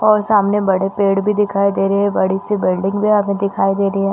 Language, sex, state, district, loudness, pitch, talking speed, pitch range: Hindi, female, Chhattisgarh, Bastar, -16 LUFS, 200 Hz, 275 wpm, 195-205 Hz